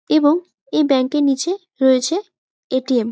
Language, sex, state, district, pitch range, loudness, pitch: Bengali, female, West Bengal, Malda, 260-355 Hz, -18 LUFS, 290 Hz